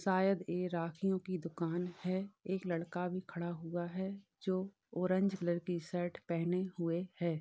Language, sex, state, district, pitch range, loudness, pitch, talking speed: Hindi, male, Uttar Pradesh, Varanasi, 170-190 Hz, -38 LUFS, 180 Hz, 160 wpm